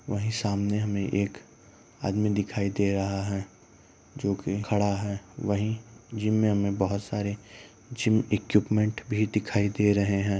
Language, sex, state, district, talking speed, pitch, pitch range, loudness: Hindi, male, Uttar Pradesh, Varanasi, 155 wpm, 100 Hz, 100-110 Hz, -28 LUFS